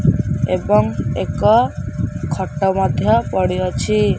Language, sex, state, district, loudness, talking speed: Odia, female, Odisha, Khordha, -18 LUFS, 85 wpm